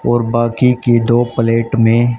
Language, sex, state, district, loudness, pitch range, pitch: Hindi, male, Haryana, Charkhi Dadri, -13 LUFS, 115-120 Hz, 120 Hz